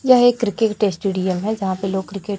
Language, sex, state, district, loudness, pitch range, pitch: Hindi, female, Chhattisgarh, Raipur, -19 LUFS, 190-220 Hz, 205 Hz